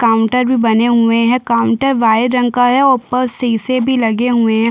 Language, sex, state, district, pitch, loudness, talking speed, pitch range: Hindi, female, Chhattisgarh, Sukma, 240 Hz, -13 LUFS, 215 wpm, 230-250 Hz